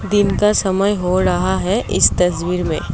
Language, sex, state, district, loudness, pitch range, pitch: Hindi, female, Assam, Kamrup Metropolitan, -16 LUFS, 180-200 Hz, 185 Hz